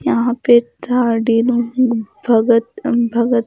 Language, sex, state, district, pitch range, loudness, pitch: Hindi, female, Bihar, Patna, 230-240 Hz, -16 LUFS, 235 Hz